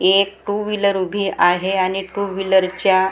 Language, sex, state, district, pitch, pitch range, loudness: Marathi, female, Maharashtra, Gondia, 195 Hz, 185-200 Hz, -18 LUFS